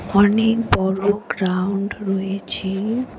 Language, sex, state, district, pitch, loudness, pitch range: Bengali, female, West Bengal, Alipurduar, 200 Hz, -20 LUFS, 190-210 Hz